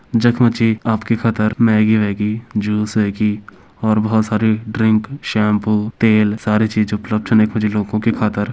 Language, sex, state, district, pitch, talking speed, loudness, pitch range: Kumaoni, male, Uttarakhand, Uttarkashi, 110 Hz, 170 wpm, -16 LUFS, 105-110 Hz